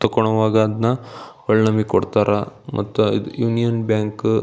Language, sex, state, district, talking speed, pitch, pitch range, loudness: Kannada, male, Karnataka, Belgaum, 135 wpm, 110 Hz, 110-115 Hz, -19 LUFS